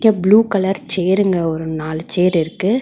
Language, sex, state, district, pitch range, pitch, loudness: Tamil, female, Tamil Nadu, Chennai, 165-205 Hz, 185 Hz, -16 LUFS